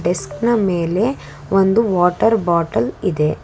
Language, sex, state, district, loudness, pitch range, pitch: Kannada, female, Karnataka, Bangalore, -17 LUFS, 175-220 Hz, 190 Hz